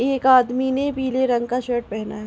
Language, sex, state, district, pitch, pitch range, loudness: Hindi, female, Uttar Pradesh, Gorakhpur, 255 Hz, 240-265 Hz, -20 LUFS